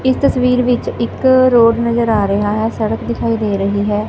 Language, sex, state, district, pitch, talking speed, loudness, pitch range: Punjabi, female, Punjab, Fazilka, 225 Hz, 220 wpm, -14 LUFS, 205-250 Hz